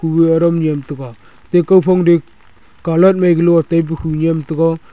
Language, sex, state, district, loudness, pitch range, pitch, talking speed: Wancho, male, Arunachal Pradesh, Longding, -13 LUFS, 160-170 Hz, 165 Hz, 180 wpm